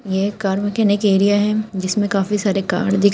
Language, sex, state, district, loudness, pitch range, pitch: Hindi, female, Uttar Pradesh, Shamli, -18 LUFS, 195-205 Hz, 200 Hz